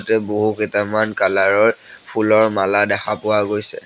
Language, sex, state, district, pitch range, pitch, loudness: Assamese, male, Assam, Sonitpur, 105-110 Hz, 105 Hz, -17 LUFS